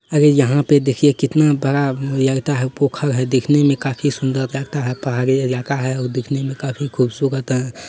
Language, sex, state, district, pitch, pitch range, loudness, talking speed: Hindi, male, Bihar, Gopalganj, 135 Hz, 130-145 Hz, -18 LUFS, 180 wpm